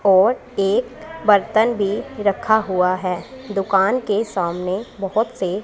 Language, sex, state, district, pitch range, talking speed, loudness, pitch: Hindi, female, Punjab, Pathankot, 190-220 Hz, 130 wpm, -19 LUFS, 200 Hz